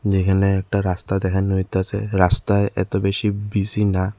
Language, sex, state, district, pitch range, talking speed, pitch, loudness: Bengali, male, Tripura, Unakoti, 95-100 Hz, 145 wpm, 100 Hz, -20 LUFS